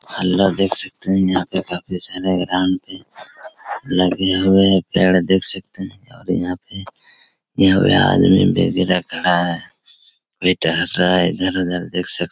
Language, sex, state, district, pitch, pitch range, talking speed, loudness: Hindi, male, Chhattisgarh, Raigarh, 95 Hz, 90-95 Hz, 160 wpm, -17 LUFS